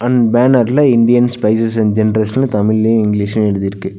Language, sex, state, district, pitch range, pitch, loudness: Tamil, male, Tamil Nadu, Nilgiris, 105-120 Hz, 110 Hz, -13 LUFS